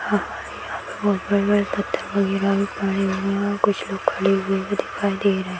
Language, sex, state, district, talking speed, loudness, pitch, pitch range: Hindi, female, Bihar, Saran, 205 wpm, -22 LUFS, 200 Hz, 195-200 Hz